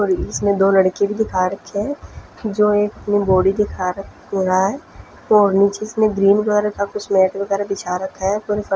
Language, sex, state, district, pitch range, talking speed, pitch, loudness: Hindi, female, Punjab, Fazilka, 190-210 Hz, 165 wpm, 200 Hz, -18 LUFS